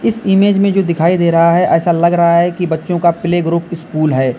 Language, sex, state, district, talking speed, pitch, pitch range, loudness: Hindi, male, Uttar Pradesh, Lalitpur, 245 wpm, 170 Hz, 165-180 Hz, -13 LUFS